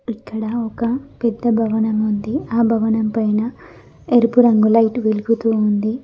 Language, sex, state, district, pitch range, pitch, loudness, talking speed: Telugu, female, Telangana, Mahabubabad, 220-235 Hz, 225 Hz, -18 LUFS, 130 wpm